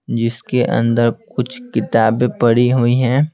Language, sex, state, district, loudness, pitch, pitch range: Hindi, male, Bihar, Patna, -16 LUFS, 120 Hz, 115-125 Hz